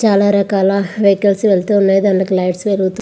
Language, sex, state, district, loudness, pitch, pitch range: Telugu, female, Andhra Pradesh, Visakhapatnam, -14 LUFS, 200 Hz, 190-200 Hz